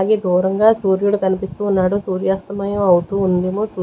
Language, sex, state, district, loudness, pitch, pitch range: Telugu, female, Andhra Pradesh, Sri Satya Sai, -17 LUFS, 190 Hz, 185-205 Hz